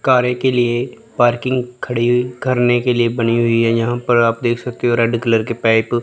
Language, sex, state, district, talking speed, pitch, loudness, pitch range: Hindi, female, Chandigarh, Chandigarh, 220 wpm, 120 Hz, -16 LUFS, 115-125 Hz